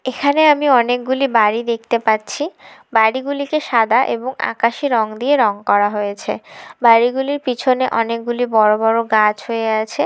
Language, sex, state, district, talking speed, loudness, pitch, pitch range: Bengali, female, West Bengal, Dakshin Dinajpur, 135 wpm, -16 LUFS, 235 Hz, 220-260 Hz